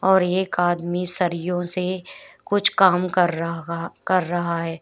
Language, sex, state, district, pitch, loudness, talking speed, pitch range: Hindi, female, Uttar Pradesh, Shamli, 180 Hz, -20 LUFS, 150 wpm, 170-185 Hz